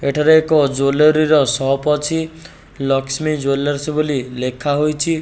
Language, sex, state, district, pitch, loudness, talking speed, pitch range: Odia, male, Odisha, Nuapada, 145 Hz, -16 LUFS, 140 wpm, 140-155 Hz